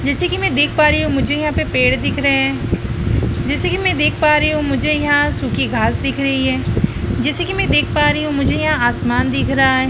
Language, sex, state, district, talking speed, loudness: Hindi, female, Madhya Pradesh, Dhar, 250 wpm, -16 LUFS